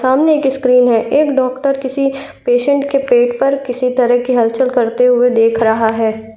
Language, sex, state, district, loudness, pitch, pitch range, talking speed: Hindi, female, Uttar Pradesh, Gorakhpur, -13 LUFS, 250 Hz, 240-275 Hz, 190 wpm